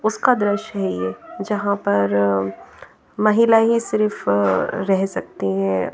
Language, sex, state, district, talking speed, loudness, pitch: Hindi, female, Bihar, Patna, 120 wpm, -19 LUFS, 195 Hz